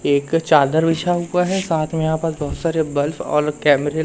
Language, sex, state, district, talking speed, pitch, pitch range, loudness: Hindi, male, Madhya Pradesh, Umaria, 220 wpm, 160 Hz, 150-165 Hz, -19 LUFS